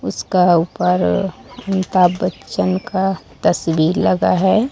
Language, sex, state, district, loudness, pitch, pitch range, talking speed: Hindi, female, Odisha, Sambalpur, -17 LUFS, 180 Hz, 160-190 Hz, 100 wpm